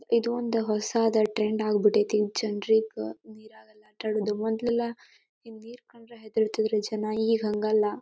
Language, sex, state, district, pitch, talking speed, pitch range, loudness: Kannada, female, Karnataka, Dharwad, 220 Hz, 120 wpm, 215-225 Hz, -27 LUFS